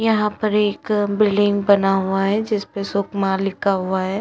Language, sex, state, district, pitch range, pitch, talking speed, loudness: Hindi, female, Chhattisgarh, Sukma, 195-210 Hz, 200 Hz, 170 wpm, -19 LUFS